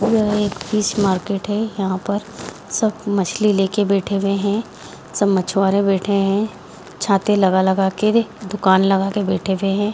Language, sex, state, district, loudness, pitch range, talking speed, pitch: Hindi, female, Bihar, Jahanabad, -19 LUFS, 195-210 Hz, 165 wpm, 200 Hz